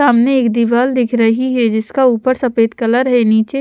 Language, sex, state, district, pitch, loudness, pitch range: Hindi, female, Chhattisgarh, Raipur, 240 Hz, -13 LUFS, 230-255 Hz